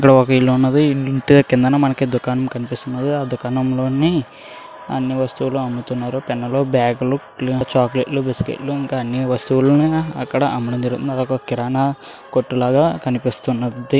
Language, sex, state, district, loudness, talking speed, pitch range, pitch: Telugu, male, Andhra Pradesh, Visakhapatnam, -18 LUFS, 130 wpm, 125-135 Hz, 130 Hz